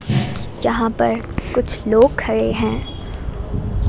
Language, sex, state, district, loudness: Hindi, female, Gujarat, Gandhinagar, -19 LUFS